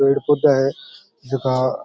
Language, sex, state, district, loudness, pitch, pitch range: Rajasthani, male, Rajasthan, Churu, -19 LUFS, 135 Hz, 130-140 Hz